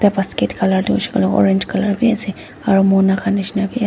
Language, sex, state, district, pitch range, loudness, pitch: Nagamese, female, Nagaland, Dimapur, 190-205 Hz, -16 LUFS, 195 Hz